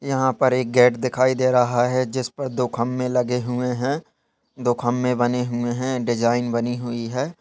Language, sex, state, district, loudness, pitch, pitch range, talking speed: Hindi, male, Uttar Pradesh, Gorakhpur, -21 LUFS, 125 Hz, 120-130 Hz, 185 wpm